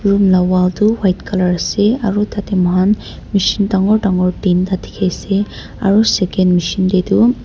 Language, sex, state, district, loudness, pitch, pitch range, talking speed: Nagamese, female, Nagaland, Dimapur, -15 LUFS, 195 Hz, 185-205 Hz, 175 wpm